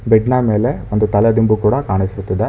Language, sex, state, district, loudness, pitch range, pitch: Kannada, male, Karnataka, Bangalore, -15 LUFS, 100-115 Hz, 105 Hz